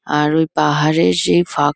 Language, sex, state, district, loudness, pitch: Bengali, female, West Bengal, Kolkata, -15 LUFS, 150 Hz